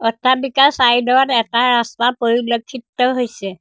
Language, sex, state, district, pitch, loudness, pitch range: Assamese, female, Assam, Sonitpur, 245 Hz, -15 LUFS, 235-255 Hz